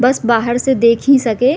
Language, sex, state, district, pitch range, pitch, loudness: Hindi, female, Bihar, Gopalganj, 235-265 Hz, 245 Hz, -13 LUFS